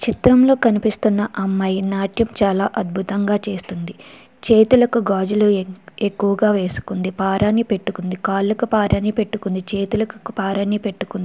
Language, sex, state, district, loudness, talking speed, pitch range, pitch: Telugu, female, Andhra Pradesh, Chittoor, -18 LUFS, 105 wpm, 195-220 Hz, 205 Hz